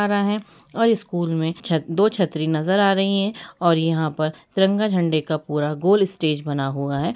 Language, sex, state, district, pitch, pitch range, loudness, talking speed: Hindi, female, Jharkhand, Sahebganj, 170 Hz, 155-200 Hz, -21 LUFS, 195 wpm